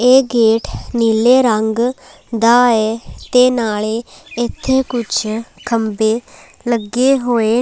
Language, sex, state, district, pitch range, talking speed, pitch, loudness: Punjabi, female, Punjab, Pathankot, 220-245 Hz, 100 wpm, 235 Hz, -15 LUFS